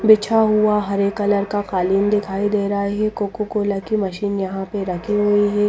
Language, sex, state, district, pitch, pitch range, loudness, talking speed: Hindi, female, Bihar, Patna, 205 Hz, 200-210 Hz, -19 LUFS, 200 wpm